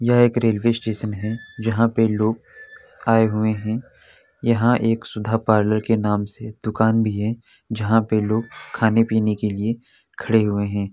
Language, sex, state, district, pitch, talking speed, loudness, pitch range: Hindi, male, Uttar Pradesh, Muzaffarnagar, 110 Hz, 160 wpm, -21 LUFS, 110-115 Hz